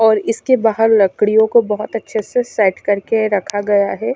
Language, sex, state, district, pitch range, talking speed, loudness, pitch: Hindi, female, Chandigarh, Chandigarh, 205-225 Hz, 185 wpm, -15 LUFS, 215 Hz